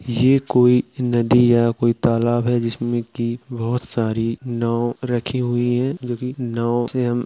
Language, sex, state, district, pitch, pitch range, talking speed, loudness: Hindi, male, Uttar Pradesh, Jalaun, 120 Hz, 115-125 Hz, 165 wpm, -20 LUFS